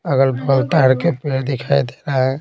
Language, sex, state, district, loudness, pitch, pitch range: Hindi, male, Bihar, Patna, -17 LUFS, 135 Hz, 130-140 Hz